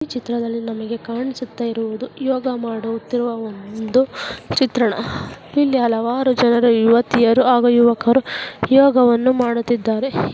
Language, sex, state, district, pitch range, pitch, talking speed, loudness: Kannada, female, Karnataka, Mysore, 230-255 Hz, 240 Hz, 100 wpm, -18 LUFS